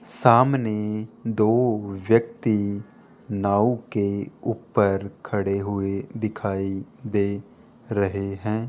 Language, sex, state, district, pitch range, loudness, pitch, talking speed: Hindi, male, Rajasthan, Jaipur, 100-115 Hz, -24 LUFS, 105 Hz, 85 wpm